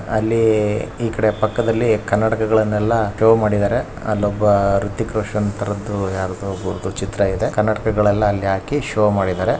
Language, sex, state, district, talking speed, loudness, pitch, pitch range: Kannada, male, Karnataka, Raichur, 125 wpm, -18 LUFS, 105 Hz, 100-110 Hz